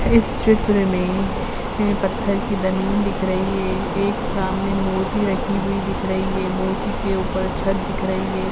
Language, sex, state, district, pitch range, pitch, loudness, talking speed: Hindi, female, Uttar Pradesh, Hamirpur, 190-205 Hz, 195 Hz, -21 LUFS, 175 wpm